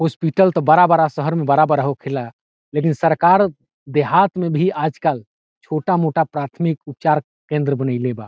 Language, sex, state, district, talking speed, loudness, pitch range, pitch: Bhojpuri, male, Bihar, Saran, 145 wpm, -18 LUFS, 140-165 Hz, 155 Hz